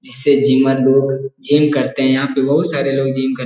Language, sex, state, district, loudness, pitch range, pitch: Hindi, male, Bihar, Jahanabad, -15 LUFS, 135-140 Hz, 135 Hz